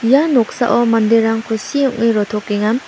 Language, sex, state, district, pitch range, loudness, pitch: Garo, female, Meghalaya, West Garo Hills, 220-245 Hz, -15 LUFS, 225 Hz